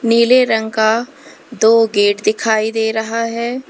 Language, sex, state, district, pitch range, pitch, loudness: Hindi, female, Uttar Pradesh, Lalitpur, 220-240 Hz, 225 Hz, -15 LUFS